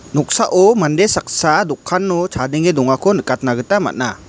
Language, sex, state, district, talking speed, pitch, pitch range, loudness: Garo, male, Meghalaya, West Garo Hills, 125 wpm, 135 Hz, 125-180 Hz, -15 LUFS